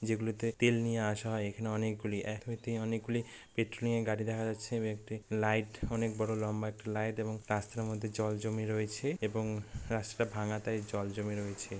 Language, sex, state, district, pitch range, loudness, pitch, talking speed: Bengali, male, West Bengal, Malda, 105-115 Hz, -36 LUFS, 110 Hz, 185 wpm